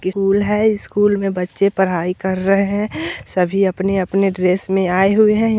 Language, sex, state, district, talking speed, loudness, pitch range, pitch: Hindi, male, Bihar, Vaishali, 170 wpm, -17 LUFS, 185-205 Hz, 195 Hz